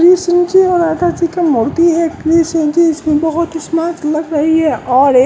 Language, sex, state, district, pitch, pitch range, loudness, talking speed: Hindi, male, Bihar, West Champaran, 330 Hz, 310-340 Hz, -13 LUFS, 170 wpm